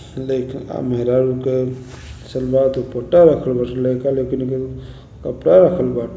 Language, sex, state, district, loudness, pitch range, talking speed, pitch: Bhojpuri, male, Uttar Pradesh, Gorakhpur, -17 LUFS, 125-130 Hz, 135 wpm, 130 Hz